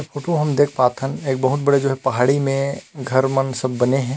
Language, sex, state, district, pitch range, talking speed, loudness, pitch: Chhattisgarhi, male, Chhattisgarh, Rajnandgaon, 130-140 Hz, 215 wpm, -19 LUFS, 135 Hz